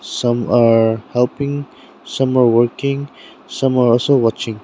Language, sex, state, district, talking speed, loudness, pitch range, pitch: English, male, Nagaland, Dimapur, 130 wpm, -16 LUFS, 115-135 Hz, 120 Hz